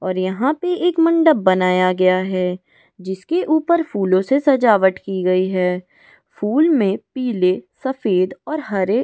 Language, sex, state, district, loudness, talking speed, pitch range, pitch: Hindi, female, Goa, North and South Goa, -18 LUFS, 155 wpm, 185-290 Hz, 195 Hz